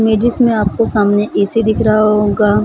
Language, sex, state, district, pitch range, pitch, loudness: Hindi, female, Bihar, Samastipur, 205-225 Hz, 215 Hz, -13 LUFS